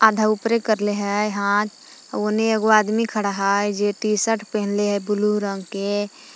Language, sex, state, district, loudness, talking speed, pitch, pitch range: Magahi, female, Jharkhand, Palamu, -21 LUFS, 170 wpm, 210 Hz, 205-215 Hz